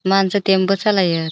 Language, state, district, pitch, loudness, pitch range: Bhili, Maharashtra, Dhule, 195 Hz, -17 LUFS, 185-195 Hz